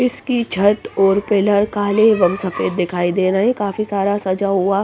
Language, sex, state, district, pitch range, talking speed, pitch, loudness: Hindi, female, Punjab, Pathankot, 190-210 Hz, 200 wpm, 200 Hz, -17 LUFS